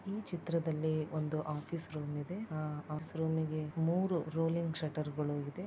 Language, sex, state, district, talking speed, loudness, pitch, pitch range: Kannada, female, Karnataka, Dakshina Kannada, 150 wpm, -37 LUFS, 155 Hz, 155-170 Hz